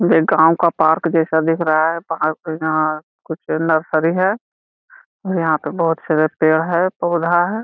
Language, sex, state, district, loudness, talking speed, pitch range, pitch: Hindi, male, Bihar, Jamui, -17 LUFS, 175 wpm, 155-175 Hz, 165 Hz